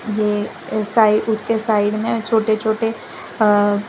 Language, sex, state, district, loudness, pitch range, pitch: Hindi, female, Gujarat, Valsad, -18 LUFS, 210-225 Hz, 215 Hz